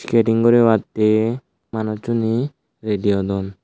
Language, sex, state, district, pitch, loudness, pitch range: Chakma, male, Tripura, Dhalai, 110 Hz, -19 LUFS, 105-115 Hz